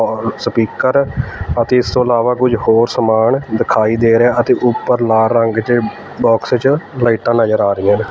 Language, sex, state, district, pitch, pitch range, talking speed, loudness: Punjabi, male, Punjab, Fazilka, 115 Hz, 110-125 Hz, 175 wpm, -14 LUFS